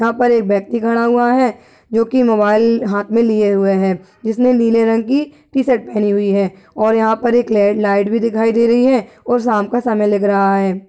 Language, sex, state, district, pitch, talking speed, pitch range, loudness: Hindi, male, Uttar Pradesh, Gorakhpur, 225 Hz, 225 wpm, 205-235 Hz, -15 LUFS